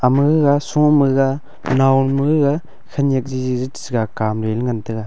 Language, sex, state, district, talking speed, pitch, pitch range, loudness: Wancho, male, Arunachal Pradesh, Longding, 175 wpm, 135 Hz, 125-145 Hz, -17 LUFS